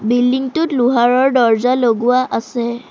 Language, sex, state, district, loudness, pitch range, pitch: Assamese, female, Assam, Sonitpur, -15 LUFS, 240-255 Hz, 245 Hz